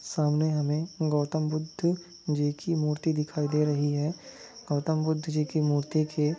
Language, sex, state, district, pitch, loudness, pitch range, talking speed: Hindi, male, Maharashtra, Nagpur, 155 Hz, -28 LUFS, 150-155 Hz, 150 wpm